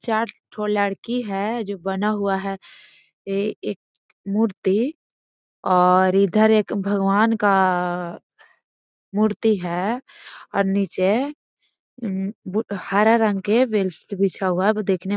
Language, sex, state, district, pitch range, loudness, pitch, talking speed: Magahi, female, Bihar, Gaya, 195-220 Hz, -21 LUFS, 200 Hz, 120 wpm